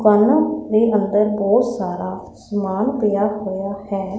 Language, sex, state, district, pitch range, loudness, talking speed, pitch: Punjabi, female, Punjab, Pathankot, 195-220 Hz, -19 LUFS, 130 wpm, 205 Hz